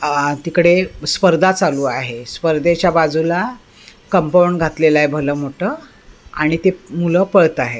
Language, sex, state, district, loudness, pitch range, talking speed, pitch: Marathi, female, Maharashtra, Mumbai Suburban, -16 LUFS, 150-180 Hz, 130 wpm, 165 Hz